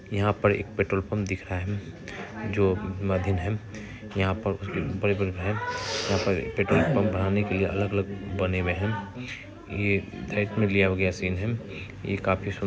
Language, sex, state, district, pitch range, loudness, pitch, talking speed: Hindi, male, Bihar, Araria, 95-105 Hz, -27 LUFS, 100 Hz, 145 wpm